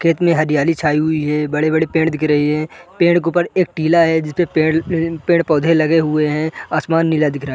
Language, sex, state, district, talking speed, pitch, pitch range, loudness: Hindi, male, Chhattisgarh, Raigarh, 230 wpm, 160 Hz, 150-165 Hz, -16 LUFS